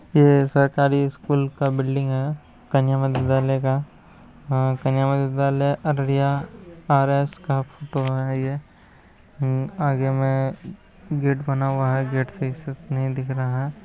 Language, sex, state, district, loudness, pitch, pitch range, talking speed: Hindi, male, Bihar, Araria, -22 LUFS, 135 Hz, 135-140 Hz, 145 wpm